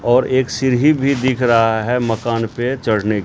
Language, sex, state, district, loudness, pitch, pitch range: Hindi, male, Bihar, Katihar, -16 LUFS, 125 Hz, 115-130 Hz